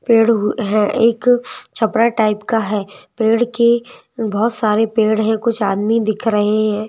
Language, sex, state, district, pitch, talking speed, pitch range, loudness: Hindi, female, Madhya Pradesh, Bhopal, 220 Hz, 165 wpm, 215-230 Hz, -16 LUFS